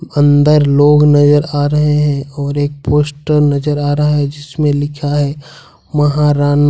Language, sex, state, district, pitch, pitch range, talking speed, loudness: Hindi, male, Jharkhand, Ranchi, 145 Hz, 145-150 Hz, 160 wpm, -13 LUFS